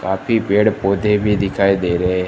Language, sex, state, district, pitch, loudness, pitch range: Hindi, male, Gujarat, Gandhinagar, 100 Hz, -16 LUFS, 95-105 Hz